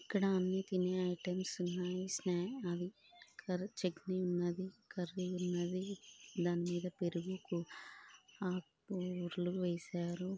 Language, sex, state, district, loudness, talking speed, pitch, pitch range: Telugu, female, Andhra Pradesh, Guntur, -40 LUFS, 80 wpm, 180 Hz, 175-185 Hz